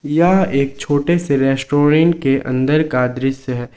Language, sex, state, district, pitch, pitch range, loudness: Hindi, male, Jharkhand, Ranchi, 140 Hz, 135-155 Hz, -16 LUFS